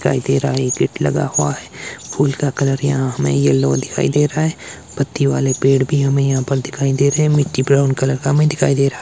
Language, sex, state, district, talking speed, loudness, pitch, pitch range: Hindi, male, Himachal Pradesh, Shimla, 260 wpm, -16 LUFS, 135 Hz, 130-140 Hz